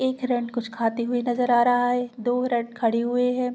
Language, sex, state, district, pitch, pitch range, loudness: Hindi, female, Chhattisgarh, Korba, 245 Hz, 235-250 Hz, -24 LUFS